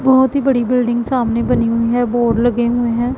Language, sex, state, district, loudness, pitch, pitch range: Hindi, female, Punjab, Pathankot, -15 LUFS, 240 Hz, 235-250 Hz